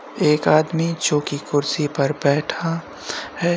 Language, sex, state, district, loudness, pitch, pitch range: Hindi, male, Uttar Pradesh, Jyotiba Phule Nagar, -20 LUFS, 150 Hz, 145-165 Hz